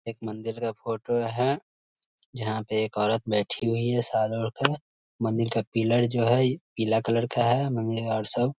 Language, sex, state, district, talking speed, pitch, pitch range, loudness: Hindi, male, Bihar, Muzaffarpur, 180 wpm, 115 Hz, 110-120 Hz, -26 LUFS